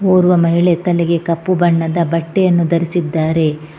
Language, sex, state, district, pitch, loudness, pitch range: Kannada, female, Karnataka, Bangalore, 170 Hz, -14 LUFS, 165-175 Hz